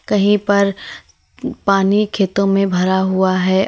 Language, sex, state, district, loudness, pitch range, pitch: Hindi, female, Uttar Pradesh, Lalitpur, -16 LUFS, 190-200 Hz, 195 Hz